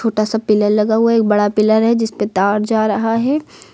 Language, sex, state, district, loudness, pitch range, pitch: Hindi, female, Uttar Pradesh, Lucknow, -15 LUFS, 210-225 Hz, 220 Hz